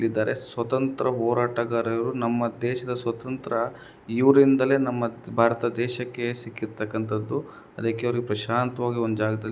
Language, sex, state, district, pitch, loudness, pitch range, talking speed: Kannada, male, Karnataka, Chamarajanagar, 120 Hz, -25 LUFS, 115-125 Hz, 100 wpm